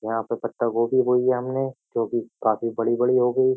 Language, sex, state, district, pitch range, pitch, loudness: Hindi, male, Uttar Pradesh, Jyotiba Phule Nagar, 115-130 Hz, 120 Hz, -23 LUFS